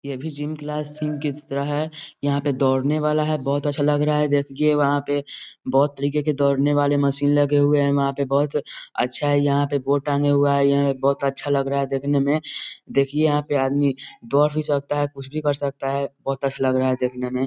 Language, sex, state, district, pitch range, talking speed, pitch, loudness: Hindi, male, Bihar, East Champaran, 140-145 Hz, 240 wpm, 145 Hz, -22 LUFS